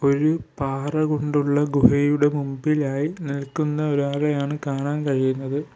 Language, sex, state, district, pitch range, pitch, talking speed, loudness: Malayalam, male, Kerala, Kollam, 140-150 Hz, 145 Hz, 95 wpm, -22 LUFS